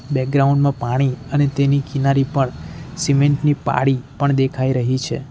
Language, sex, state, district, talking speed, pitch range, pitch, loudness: Gujarati, male, Gujarat, Valsad, 160 wpm, 130-140 Hz, 135 Hz, -18 LUFS